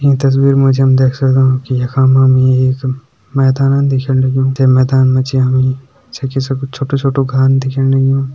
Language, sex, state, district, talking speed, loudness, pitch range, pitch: Hindi, male, Uttarakhand, Tehri Garhwal, 185 wpm, -12 LUFS, 130-135 Hz, 135 Hz